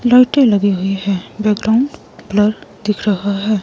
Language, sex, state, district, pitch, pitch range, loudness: Hindi, female, Himachal Pradesh, Shimla, 210 Hz, 200-220 Hz, -15 LUFS